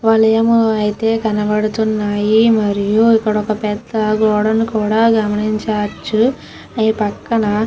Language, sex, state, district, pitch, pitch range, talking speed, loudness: Telugu, female, Andhra Pradesh, Krishna, 215 Hz, 210-225 Hz, 95 wpm, -15 LUFS